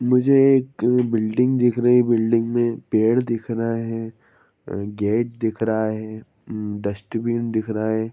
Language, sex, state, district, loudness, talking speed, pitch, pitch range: Hindi, male, Jharkhand, Sahebganj, -21 LUFS, 150 wpm, 115 Hz, 110-120 Hz